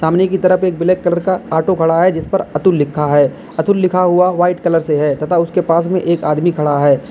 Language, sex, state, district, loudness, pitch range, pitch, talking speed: Hindi, male, Uttar Pradesh, Lalitpur, -14 LUFS, 160-185 Hz, 170 Hz, 255 wpm